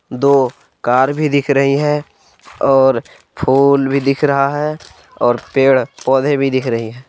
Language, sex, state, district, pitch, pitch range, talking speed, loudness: Hindi, male, Jharkhand, Palamu, 135 Hz, 130-140 Hz, 160 wpm, -15 LUFS